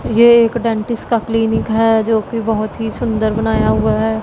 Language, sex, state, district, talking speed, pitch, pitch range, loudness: Hindi, female, Punjab, Pathankot, 200 wpm, 225 Hz, 215-230 Hz, -15 LUFS